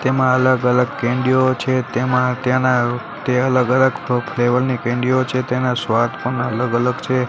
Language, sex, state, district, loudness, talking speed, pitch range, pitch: Gujarati, male, Gujarat, Gandhinagar, -18 LUFS, 165 wpm, 125-130 Hz, 125 Hz